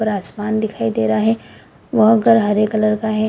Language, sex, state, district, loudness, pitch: Hindi, female, Bihar, Purnia, -17 LUFS, 215 Hz